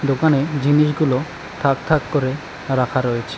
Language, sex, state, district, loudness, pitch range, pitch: Bengali, male, West Bengal, Cooch Behar, -19 LUFS, 130-150 Hz, 140 Hz